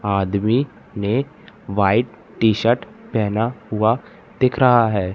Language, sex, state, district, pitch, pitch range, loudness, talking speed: Hindi, male, Madhya Pradesh, Katni, 110 Hz, 105-120 Hz, -19 LUFS, 115 wpm